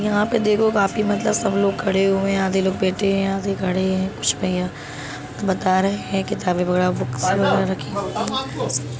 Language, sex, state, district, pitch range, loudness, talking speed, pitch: Hindi, female, Uttar Pradesh, Budaun, 185-200 Hz, -21 LUFS, 195 wpm, 195 Hz